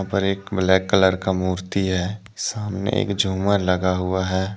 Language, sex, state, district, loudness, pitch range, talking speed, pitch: Hindi, male, Jharkhand, Deoghar, -21 LUFS, 95-100 Hz, 170 wpm, 95 Hz